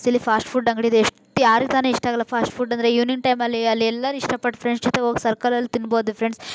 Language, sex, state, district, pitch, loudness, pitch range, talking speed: Kannada, female, Karnataka, Dharwad, 240 Hz, -20 LUFS, 230-245 Hz, 230 wpm